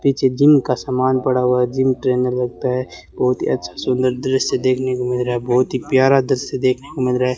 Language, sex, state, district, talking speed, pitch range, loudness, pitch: Hindi, male, Rajasthan, Bikaner, 245 wpm, 125-130 Hz, -18 LUFS, 130 Hz